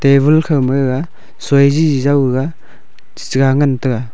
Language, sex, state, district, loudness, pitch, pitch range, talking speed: Wancho, male, Arunachal Pradesh, Longding, -14 LUFS, 140 Hz, 130-145 Hz, 175 wpm